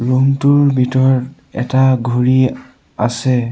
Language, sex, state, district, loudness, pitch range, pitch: Assamese, male, Assam, Sonitpur, -14 LUFS, 125-130 Hz, 130 Hz